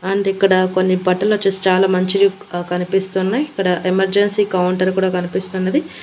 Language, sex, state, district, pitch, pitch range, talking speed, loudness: Telugu, female, Andhra Pradesh, Annamaya, 190 Hz, 185-195 Hz, 130 wpm, -17 LUFS